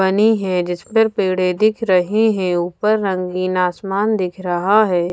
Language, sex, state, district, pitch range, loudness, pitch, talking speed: Hindi, female, Bihar, Patna, 180-215 Hz, -17 LUFS, 190 Hz, 165 wpm